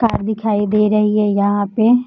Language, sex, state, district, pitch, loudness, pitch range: Hindi, female, Uttar Pradesh, Gorakhpur, 210 Hz, -16 LUFS, 205-220 Hz